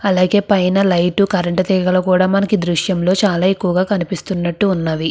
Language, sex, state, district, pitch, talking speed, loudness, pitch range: Telugu, female, Andhra Pradesh, Krishna, 185 Hz, 150 wpm, -16 LUFS, 180-195 Hz